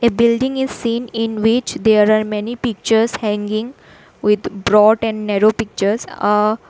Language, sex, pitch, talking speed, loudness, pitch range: English, female, 220 Hz, 145 wpm, -17 LUFS, 210-230 Hz